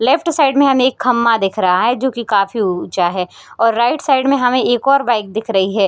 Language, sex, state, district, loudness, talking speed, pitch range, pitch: Hindi, female, Bihar, Darbhanga, -15 LUFS, 245 wpm, 200-265 Hz, 235 Hz